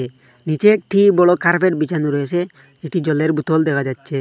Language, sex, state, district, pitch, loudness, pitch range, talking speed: Bengali, male, Assam, Hailakandi, 160 Hz, -17 LUFS, 140-175 Hz, 155 wpm